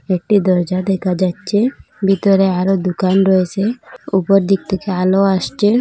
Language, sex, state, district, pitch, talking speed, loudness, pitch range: Bengali, female, Assam, Hailakandi, 190 Hz, 135 wpm, -15 LUFS, 185-195 Hz